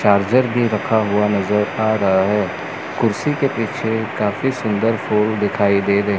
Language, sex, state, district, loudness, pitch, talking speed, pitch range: Hindi, male, Chandigarh, Chandigarh, -18 LUFS, 105 Hz, 165 wpm, 100-115 Hz